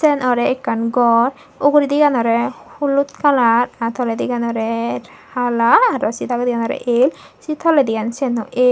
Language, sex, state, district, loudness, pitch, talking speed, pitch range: Chakma, female, Tripura, Dhalai, -17 LUFS, 245 Hz, 130 wpm, 235-285 Hz